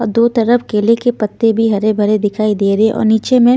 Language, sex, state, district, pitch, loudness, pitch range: Hindi, female, Bihar, Patna, 220 Hz, -13 LUFS, 215-235 Hz